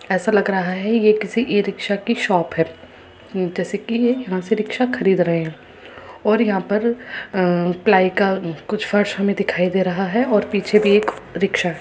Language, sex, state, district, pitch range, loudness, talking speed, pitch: Hindi, female, Uttar Pradesh, Muzaffarnagar, 185-215 Hz, -19 LUFS, 195 wpm, 200 Hz